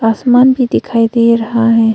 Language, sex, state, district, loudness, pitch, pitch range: Hindi, female, Arunachal Pradesh, Longding, -11 LUFS, 230 Hz, 225-245 Hz